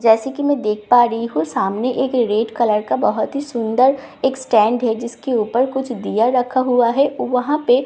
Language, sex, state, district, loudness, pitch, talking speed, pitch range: Hindi, female, Bihar, Katihar, -18 LUFS, 245 Hz, 215 wpm, 225-265 Hz